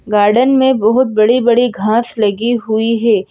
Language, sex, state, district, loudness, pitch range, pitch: Hindi, female, Madhya Pradesh, Bhopal, -12 LUFS, 215-245 Hz, 230 Hz